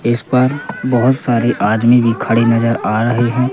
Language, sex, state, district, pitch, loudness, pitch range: Hindi, male, Madhya Pradesh, Katni, 120 Hz, -14 LUFS, 115-125 Hz